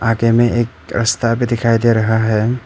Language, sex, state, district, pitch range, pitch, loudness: Hindi, male, Arunachal Pradesh, Papum Pare, 115-120 Hz, 115 Hz, -15 LUFS